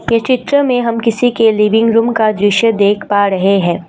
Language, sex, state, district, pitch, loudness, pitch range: Hindi, female, Assam, Kamrup Metropolitan, 225 Hz, -12 LUFS, 205-230 Hz